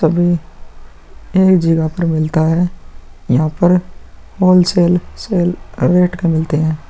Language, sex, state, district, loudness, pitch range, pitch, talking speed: Hindi, male, Bihar, Vaishali, -14 LUFS, 155-175 Hz, 165 Hz, 120 wpm